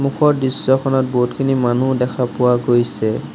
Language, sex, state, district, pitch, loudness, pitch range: Assamese, male, Assam, Sonitpur, 130 Hz, -17 LUFS, 125-135 Hz